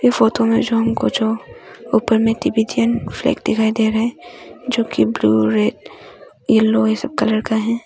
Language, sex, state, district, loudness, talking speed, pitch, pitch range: Hindi, female, Arunachal Pradesh, Longding, -17 LUFS, 160 wpm, 225 Hz, 215-230 Hz